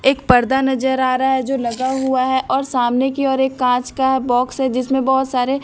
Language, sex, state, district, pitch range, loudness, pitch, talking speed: Hindi, female, Bihar, Katihar, 255-265 Hz, -17 LUFS, 265 Hz, 235 wpm